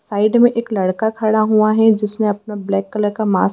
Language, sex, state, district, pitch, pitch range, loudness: Hindi, female, Madhya Pradesh, Dhar, 215 Hz, 205-220 Hz, -16 LUFS